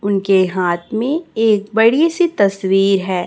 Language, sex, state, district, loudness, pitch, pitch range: Hindi, female, Chhattisgarh, Raipur, -15 LUFS, 200 Hz, 190-225 Hz